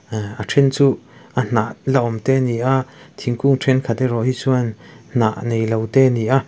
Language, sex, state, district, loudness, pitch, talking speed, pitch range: Mizo, male, Mizoram, Aizawl, -19 LUFS, 130 Hz, 205 wpm, 115-135 Hz